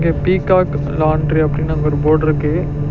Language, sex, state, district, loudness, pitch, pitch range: Tamil, male, Tamil Nadu, Nilgiris, -16 LUFS, 155 Hz, 150-160 Hz